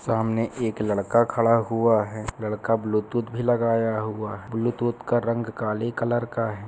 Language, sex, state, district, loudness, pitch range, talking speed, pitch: Hindi, male, Chhattisgarh, Bilaspur, -24 LUFS, 110-115 Hz, 170 wpm, 115 Hz